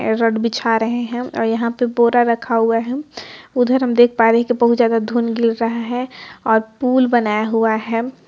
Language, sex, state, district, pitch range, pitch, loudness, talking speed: Hindi, female, Jharkhand, Sahebganj, 225-245 Hz, 235 Hz, -17 LUFS, 210 wpm